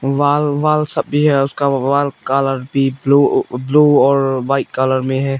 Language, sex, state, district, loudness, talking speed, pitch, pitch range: Hindi, male, Nagaland, Kohima, -15 LUFS, 180 wpm, 140 Hz, 135-145 Hz